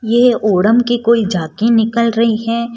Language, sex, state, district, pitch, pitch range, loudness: Hindi, female, Rajasthan, Jaipur, 230 Hz, 220-235 Hz, -13 LUFS